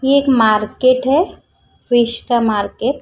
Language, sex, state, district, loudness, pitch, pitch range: Hindi, female, Chhattisgarh, Raipur, -15 LUFS, 245 Hz, 225-270 Hz